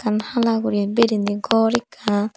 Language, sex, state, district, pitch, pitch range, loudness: Chakma, female, Tripura, Dhalai, 220 Hz, 205-230 Hz, -20 LUFS